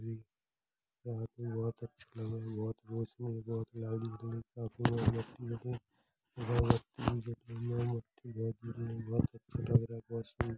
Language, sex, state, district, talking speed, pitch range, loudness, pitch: Hindi, male, Uttar Pradesh, Hamirpur, 140 wpm, 115-120 Hz, -38 LUFS, 115 Hz